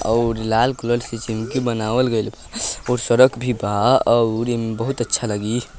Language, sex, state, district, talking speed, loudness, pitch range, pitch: Hindi, male, Bihar, Vaishali, 155 wpm, -20 LUFS, 110-125 Hz, 115 Hz